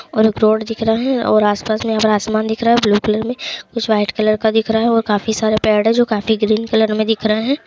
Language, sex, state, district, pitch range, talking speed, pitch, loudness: Hindi, female, Chhattisgarh, Sukma, 215-225 Hz, 290 wpm, 220 Hz, -16 LUFS